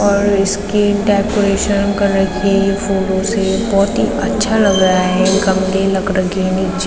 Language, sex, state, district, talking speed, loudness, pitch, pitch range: Hindi, female, Uttarakhand, Tehri Garhwal, 155 wpm, -14 LUFS, 195 Hz, 190-200 Hz